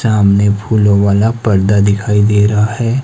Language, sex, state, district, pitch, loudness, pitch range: Hindi, male, Himachal Pradesh, Shimla, 105 Hz, -12 LUFS, 100-110 Hz